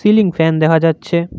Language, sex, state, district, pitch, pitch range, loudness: Bengali, male, West Bengal, Cooch Behar, 165 Hz, 160-200 Hz, -14 LUFS